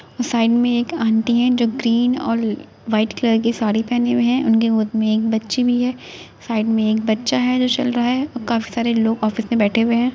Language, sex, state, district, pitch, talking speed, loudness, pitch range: Hindi, female, Uttar Pradesh, Jalaun, 235 Hz, 235 wpm, -18 LUFS, 225-245 Hz